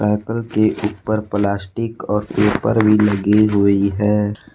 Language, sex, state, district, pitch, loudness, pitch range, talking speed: Hindi, male, Jharkhand, Ranchi, 105 Hz, -17 LUFS, 100-110 Hz, 145 wpm